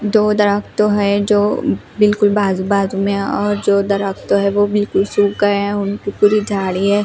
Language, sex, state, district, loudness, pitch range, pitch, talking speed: Hindi, female, Himachal Pradesh, Shimla, -16 LUFS, 200-205 Hz, 205 Hz, 180 wpm